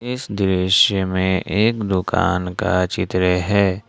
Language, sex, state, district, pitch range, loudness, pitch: Hindi, male, Jharkhand, Ranchi, 90-105 Hz, -18 LUFS, 95 Hz